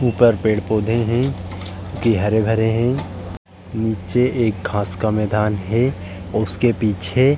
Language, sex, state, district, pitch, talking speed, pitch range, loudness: Hindi, male, Uttar Pradesh, Jalaun, 110 Hz, 130 wpm, 95-115 Hz, -19 LUFS